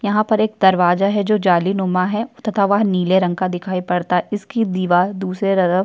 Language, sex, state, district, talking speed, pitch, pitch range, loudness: Hindi, female, Uttar Pradesh, Jyotiba Phule Nagar, 205 wpm, 190 Hz, 180-210 Hz, -17 LUFS